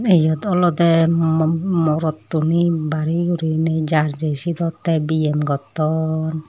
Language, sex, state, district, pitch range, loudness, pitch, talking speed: Chakma, female, Tripura, Unakoti, 155-170 Hz, -19 LUFS, 160 Hz, 110 wpm